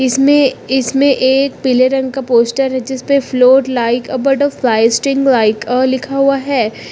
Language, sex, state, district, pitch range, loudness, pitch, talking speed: Hindi, female, Uttar Pradesh, Lucknow, 250-275 Hz, -13 LUFS, 260 Hz, 175 wpm